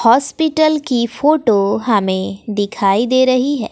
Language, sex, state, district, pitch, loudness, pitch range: Hindi, female, Bihar, West Champaran, 235 Hz, -15 LUFS, 205-280 Hz